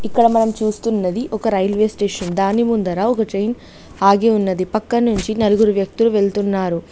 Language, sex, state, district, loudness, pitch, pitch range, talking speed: Telugu, female, Telangana, Mahabubabad, -17 LUFS, 215 Hz, 195-225 Hz, 145 wpm